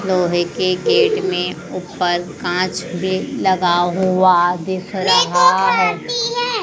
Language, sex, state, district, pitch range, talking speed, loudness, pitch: Hindi, female, Madhya Pradesh, Dhar, 175-190 Hz, 110 wpm, -16 LUFS, 185 Hz